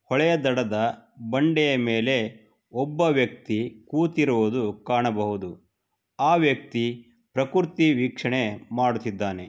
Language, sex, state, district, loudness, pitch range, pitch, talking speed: Kannada, male, Karnataka, Shimoga, -24 LUFS, 115-145 Hz, 125 Hz, 80 wpm